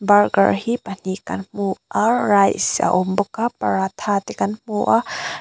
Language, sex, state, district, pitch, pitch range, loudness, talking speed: Mizo, female, Mizoram, Aizawl, 200 Hz, 190-215 Hz, -20 LUFS, 175 wpm